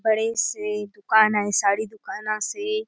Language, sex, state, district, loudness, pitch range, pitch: Halbi, female, Chhattisgarh, Bastar, -23 LUFS, 210-225 Hz, 215 Hz